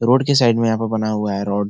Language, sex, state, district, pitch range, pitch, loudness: Hindi, male, Bihar, Supaul, 105-120 Hz, 110 Hz, -18 LUFS